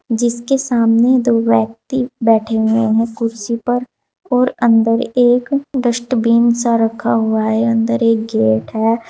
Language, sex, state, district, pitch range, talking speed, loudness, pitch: Hindi, female, Uttar Pradesh, Saharanpur, 225-245 Hz, 140 wpm, -15 LUFS, 230 Hz